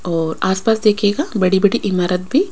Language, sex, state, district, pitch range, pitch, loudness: Hindi, female, Rajasthan, Jaipur, 180-210 Hz, 190 Hz, -16 LUFS